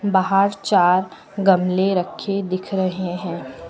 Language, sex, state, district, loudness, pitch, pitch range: Hindi, female, Uttar Pradesh, Lucknow, -20 LUFS, 185 Hz, 180-195 Hz